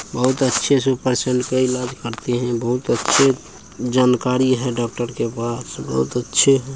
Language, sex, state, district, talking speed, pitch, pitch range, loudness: Maithili, male, Bihar, Bhagalpur, 160 wpm, 125 Hz, 120-130 Hz, -19 LUFS